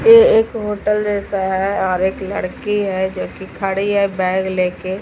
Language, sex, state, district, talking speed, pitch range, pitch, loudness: Hindi, female, Bihar, Katihar, 180 wpm, 190-210 Hz, 195 Hz, -17 LUFS